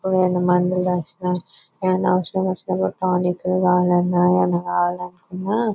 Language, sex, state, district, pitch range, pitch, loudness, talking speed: Telugu, female, Telangana, Nalgonda, 180-185 Hz, 180 Hz, -20 LUFS, 115 wpm